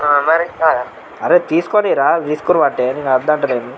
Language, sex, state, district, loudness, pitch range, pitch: Telugu, male, Andhra Pradesh, Anantapur, -15 LUFS, 130-165 Hz, 150 Hz